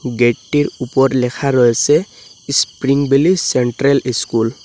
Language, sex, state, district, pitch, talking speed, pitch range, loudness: Bengali, male, Assam, Hailakandi, 135 Hz, 115 wpm, 120-140 Hz, -15 LUFS